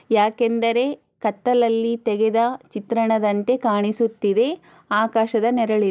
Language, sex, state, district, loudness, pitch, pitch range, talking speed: Kannada, female, Karnataka, Chamarajanagar, -20 LUFS, 225 Hz, 215-235 Hz, 80 wpm